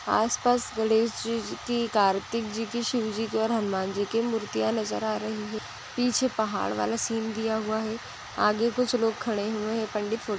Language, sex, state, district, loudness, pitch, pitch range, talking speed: Hindi, female, Maharashtra, Nagpur, -28 LUFS, 220 Hz, 215-230 Hz, 210 wpm